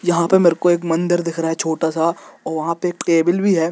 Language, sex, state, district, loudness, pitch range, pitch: Hindi, male, Jharkhand, Jamtara, -18 LUFS, 165-175 Hz, 170 Hz